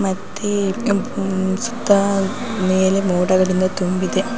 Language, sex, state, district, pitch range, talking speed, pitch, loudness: Kannada, female, Karnataka, Gulbarga, 185-205 Hz, 80 wpm, 195 Hz, -19 LUFS